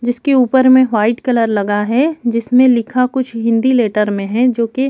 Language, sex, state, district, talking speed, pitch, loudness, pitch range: Hindi, female, Chhattisgarh, Kabirdham, 195 wpm, 240 Hz, -14 LUFS, 225-260 Hz